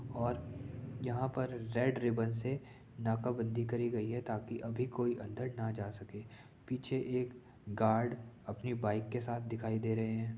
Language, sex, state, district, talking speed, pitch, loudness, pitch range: Hindi, male, Uttar Pradesh, Jyotiba Phule Nagar, 160 wpm, 120 Hz, -38 LUFS, 110-125 Hz